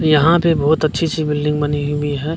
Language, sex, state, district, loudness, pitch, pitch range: Hindi, male, Bihar, Kishanganj, -17 LUFS, 155 Hz, 145-160 Hz